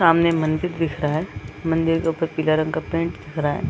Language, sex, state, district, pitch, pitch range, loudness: Hindi, female, Chhattisgarh, Balrampur, 165 Hz, 155-165 Hz, -22 LUFS